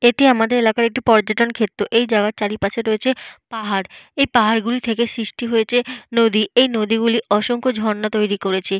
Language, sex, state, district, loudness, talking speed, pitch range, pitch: Bengali, female, Jharkhand, Jamtara, -18 LUFS, 150 wpm, 215-240 Hz, 225 Hz